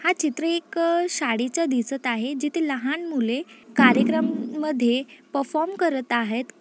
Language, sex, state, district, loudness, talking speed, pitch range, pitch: Marathi, female, Maharashtra, Nagpur, -23 LUFS, 125 wpm, 245-320 Hz, 275 Hz